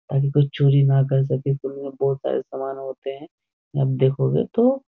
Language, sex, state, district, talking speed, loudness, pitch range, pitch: Hindi, male, Bihar, Jahanabad, 185 wpm, -21 LUFS, 135-140 Hz, 135 Hz